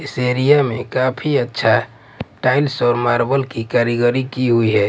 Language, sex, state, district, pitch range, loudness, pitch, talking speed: Hindi, male, Punjab, Pathankot, 120-130 Hz, -17 LUFS, 120 Hz, 160 wpm